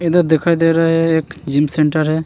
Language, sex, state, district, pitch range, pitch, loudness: Hindi, male, Uttarakhand, Tehri Garhwal, 155-165 Hz, 160 Hz, -15 LUFS